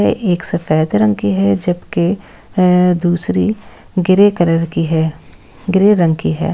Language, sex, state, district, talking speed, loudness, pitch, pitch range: Hindi, female, Delhi, New Delhi, 135 wpm, -14 LUFS, 175 Hz, 155-185 Hz